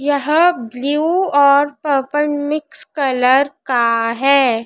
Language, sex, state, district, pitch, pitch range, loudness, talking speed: Hindi, female, Madhya Pradesh, Dhar, 285 Hz, 260-300 Hz, -15 LUFS, 105 wpm